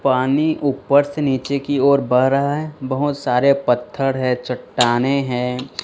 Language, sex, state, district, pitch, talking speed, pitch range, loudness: Hindi, male, Chhattisgarh, Raipur, 135 Hz, 155 wpm, 125-140 Hz, -18 LUFS